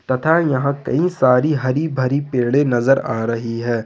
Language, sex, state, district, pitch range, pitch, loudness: Hindi, male, Jharkhand, Ranchi, 120-145 Hz, 130 Hz, -18 LUFS